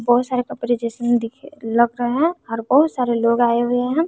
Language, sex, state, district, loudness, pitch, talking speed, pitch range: Hindi, female, Bihar, West Champaran, -19 LUFS, 240 Hz, 220 wpm, 235-255 Hz